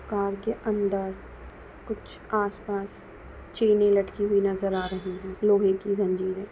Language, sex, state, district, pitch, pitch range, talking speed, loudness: Hindi, female, Bihar, East Champaran, 200 Hz, 195-205 Hz, 145 wpm, -26 LUFS